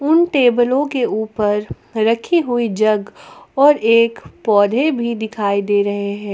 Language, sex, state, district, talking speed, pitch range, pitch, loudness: Hindi, female, Jharkhand, Palamu, 140 wpm, 210-255 Hz, 225 Hz, -16 LUFS